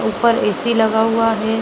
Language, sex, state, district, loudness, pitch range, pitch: Hindi, female, Chhattisgarh, Bilaspur, -16 LUFS, 220-230 Hz, 225 Hz